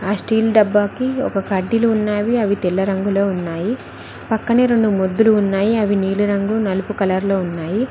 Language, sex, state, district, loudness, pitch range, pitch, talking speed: Telugu, female, Telangana, Mahabubabad, -18 LUFS, 195-220 Hz, 205 Hz, 160 wpm